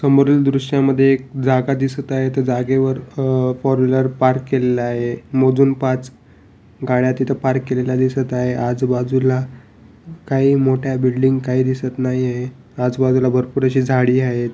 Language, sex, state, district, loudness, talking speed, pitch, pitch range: Marathi, male, Maharashtra, Pune, -17 LUFS, 100 wpm, 130 Hz, 125-135 Hz